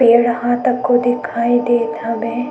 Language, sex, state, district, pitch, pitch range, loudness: Chhattisgarhi, female, Chhattisgarh, Sukma, 240 Hz, 235-245 Hz, -16 LUFS